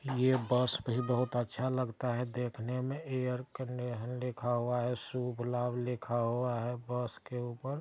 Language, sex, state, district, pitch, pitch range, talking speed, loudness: Maithili, male, Bihar, Darbhanga, 125 Hz, 120-125 Hz, 155 wpm, -35 LUFS